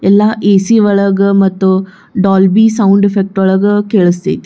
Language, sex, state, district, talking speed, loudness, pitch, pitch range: Kannada, female, Karnataka, Bijapur, 120 wpm, -10 LUFS, 195 Hz, 190-205 Hz